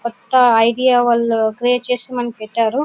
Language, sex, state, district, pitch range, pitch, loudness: Telugu, female, Karnataka, Bellary, 230-250 Hz, 235 Hz, -16 LUFS